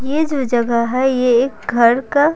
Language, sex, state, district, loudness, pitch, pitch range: Hindi, female, Bihar, Patna, -16 LUFS, 255 Hz, 240-280 Hz